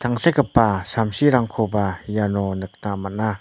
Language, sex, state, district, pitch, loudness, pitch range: Garo, male, Meghalaya, North Garo Hills, 105 Hz, -21 LUFS, 100-120 Hz